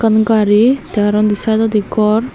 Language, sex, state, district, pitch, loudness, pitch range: Chakma, female, Tripura, Dhalai, 215 Hz, -13 LUFS, 210-225 Hz